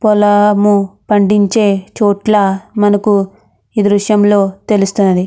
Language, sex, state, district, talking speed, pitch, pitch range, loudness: Telugu, female, Andhra Pradesh, Krishna, 80 wpm, 205 Hz, 200-210 Hz, -12 LUFS